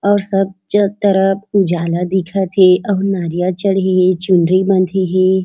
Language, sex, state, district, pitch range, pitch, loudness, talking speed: Chhattisgarhi, female, Chhattisgarh, Raigarh, 185-195 Hz, 190 Hz, -14 LUFS, 155 wpm